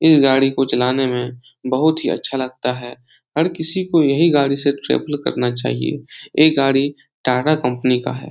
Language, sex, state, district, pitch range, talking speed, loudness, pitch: Hindi, male, Bihar, Lakhisarai, 125-150 Hz, 180 wpm, -17 LUFS, 135 Hz